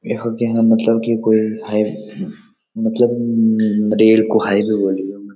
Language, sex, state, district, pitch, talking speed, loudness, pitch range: Garhwali, male, Uttarakhand, Uttarkashi, 110 Hz, 155 wpm, -16 LUFS, 105-115 Hz